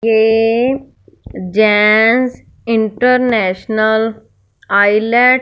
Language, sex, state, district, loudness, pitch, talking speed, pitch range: Hindi, female, Punjab, Fazilka, -13 LUFS, 220 Hz, 45 wpm, 210-240 Hz